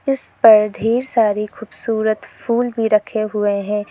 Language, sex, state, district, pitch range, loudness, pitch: Hindi, female, Arunachal Pradesh, Lower Dibang Valley, 210-230 Hz, -17 LUFS, 220 Hz